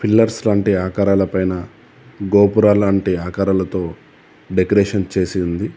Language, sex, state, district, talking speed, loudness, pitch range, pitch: Telugu, male, Telangana, Komaram Bheem, 95 wpm, -17 LUFS, 90-105 Hz, 100 Hz